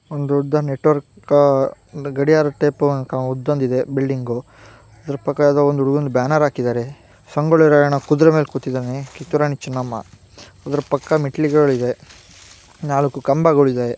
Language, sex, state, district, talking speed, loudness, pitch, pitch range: Kannada, female, Karnataka, Gulbarga, 115 wpm, -18 LUFS, 140 Hz, 125-145 Hz